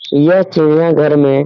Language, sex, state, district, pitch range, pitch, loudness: Hindi, male, Bihar, Lakhisarai, 145-165 Hz, 155 Hz, -11 LUFS